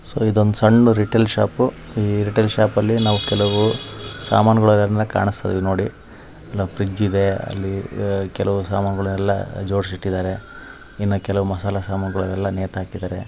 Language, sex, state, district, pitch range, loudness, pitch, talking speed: Kannada, male, Karnataka, Raichur, 95-110 Hz, -20 LUFS, 100 Hz, 140 wpm